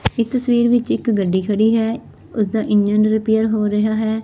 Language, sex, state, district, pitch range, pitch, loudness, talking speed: Punjabi, female, Punjab, Fazilka, 210-230 Hz, 220 Hz, -17 LUFS, 185 wpm